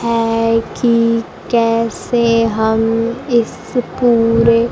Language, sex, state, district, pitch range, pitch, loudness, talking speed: Hindi, female, Bihar, Kaimur, 230-235 Hz, 230 Hz, -15 LUFS, 75 wpm